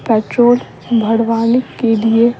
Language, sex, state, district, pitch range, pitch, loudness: Hindi, female, Bihar, Patna, 225-240 Hz, 230 Hz, -14 LUFS